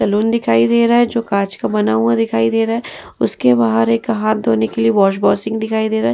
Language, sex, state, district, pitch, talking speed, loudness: Hindi, female, Uttar Pradesh, Muzaffarnagar, 200 Hz, 255 wpm, -15 LUFS